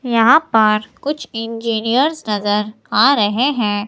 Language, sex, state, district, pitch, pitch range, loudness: Hindi, female, Himachal Pradesh, Shimla, 225 Hz, 210-270 Hz, -16 LUFS